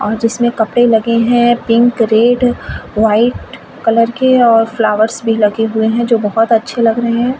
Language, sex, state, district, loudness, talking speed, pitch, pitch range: Hindi, female, Uttar Pradesh, Varanasi, -12 LUFS, 180 wpm, 230 Hz, 225-240 Hz